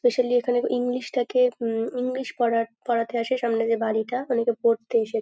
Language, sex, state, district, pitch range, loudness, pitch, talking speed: Bengali, female, West Bengal, North 24 Parganas, 230-250 Hz, -24 LUFS, 245 Hz, 175 wpm